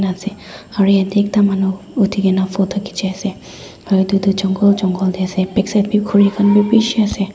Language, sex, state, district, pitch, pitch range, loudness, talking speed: Nagamese, female, Nagaland, Dimapur, 200 Hz, 190-205 Hz, -16 LUFS, 195 wpm